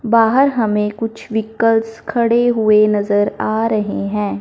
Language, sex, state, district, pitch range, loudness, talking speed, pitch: Hindi, male, Punjab, Fazilka, 210-230 Hz, -16 LUFS, 135 wpm, 220 Hz